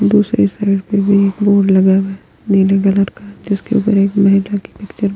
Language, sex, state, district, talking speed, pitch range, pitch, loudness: Hindi, female, Delhi, New Delhi, 220 wpm, 195-205 Hz, 200 Hz, -14 LUFS